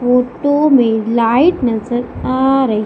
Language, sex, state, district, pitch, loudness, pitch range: Hindi, female, Madhya Pradesh, Umaria, 250 Hz, -14 LUFS, 230-270 Hz